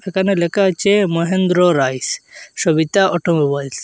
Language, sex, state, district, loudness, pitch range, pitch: Bengali, male, Assam, Hailakandi, -16 LUFS, 160-190 Hz, 175 Hz